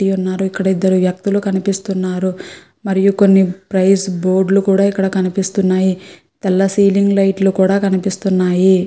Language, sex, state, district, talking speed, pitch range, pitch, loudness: Telugu, female, Andhra Pradesh, Guntur, 135 wpm, 185-195 Hz, 190 Hz, -15 LUFS